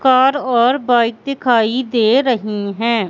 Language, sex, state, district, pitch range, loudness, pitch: Hindi, female, Madhya Pradesh, Katni, 230-260 Hz, -15 LUFS, 240 Hz